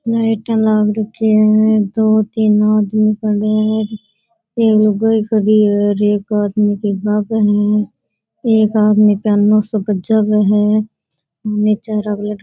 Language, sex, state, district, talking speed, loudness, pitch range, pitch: Rajasthani, female, Rajasthan, Nagaur, 100 wpm, -14 LUFS, 210-215 Hz, 215 Hz